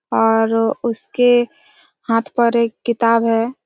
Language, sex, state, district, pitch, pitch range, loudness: Hindi, female, Chhattisgarh, Raigarh, 230 Hz, 225-240 Hz, -17 LUFS